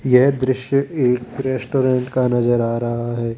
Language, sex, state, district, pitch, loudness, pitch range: Hindi, male, Rajasthan, Jaipur, 125 Hz, -19 LUFS, 120-130 Hz